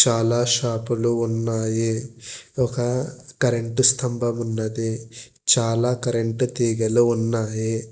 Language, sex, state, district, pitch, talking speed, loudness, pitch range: Telugu, male, Telangana, Hyderabad, 115 Hz, 85 wpm, -22 LUFS, 115-120 Hz